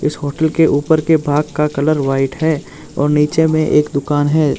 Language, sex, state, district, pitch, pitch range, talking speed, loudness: Hindi, male, Arunachal Pradesh, Lower Dibang Valley, 150 Hz, 145-155 Hz, 210 wpm, -15 LUFS